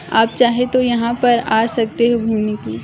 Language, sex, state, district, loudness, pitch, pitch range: Hindi, male, Chhattisgarh, Bilaspur, -16 LUFS, 235 Hz, 220-240 Hz